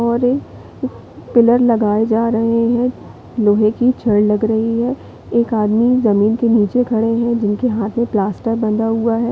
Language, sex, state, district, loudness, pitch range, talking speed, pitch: Hindi, female, Chhattisgarh, Bilaspur, -16 LUFS, 215-235 Hz, 175 wpm, 230 Hz